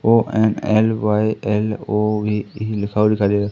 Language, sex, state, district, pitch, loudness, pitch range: Hindi, male, Madhya Pradesh, Katni, 105 Hz, -19 LUFS, 105-110 Hz